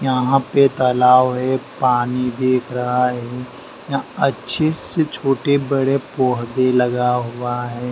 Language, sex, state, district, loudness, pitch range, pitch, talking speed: Hindi, male, Madhya Pradesh, Dhar, -18 LUFS, 125-135 Hz, 125 Hz, 130 wpm